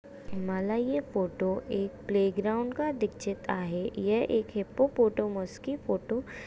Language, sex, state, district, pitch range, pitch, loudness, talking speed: Hindi, female, Maharashtra, Aurangabad, 195-245 Hz, 210 Hz, -30 LUFS, 140 wpm